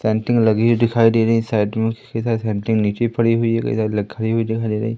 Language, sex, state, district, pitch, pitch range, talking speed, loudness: Hindi, male, Madhya Pradesh, Katni, 115 Hz, 110-115 Hz, 230 wpm, -18 LUFS